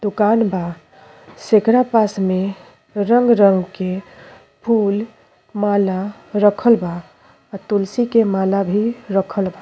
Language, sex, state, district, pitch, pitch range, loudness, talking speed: Bhojpuri, female, Uttar Pradesh, Ghazipur, 205 Hz, 190-220 Hz, -17 LUFS, 120 wpm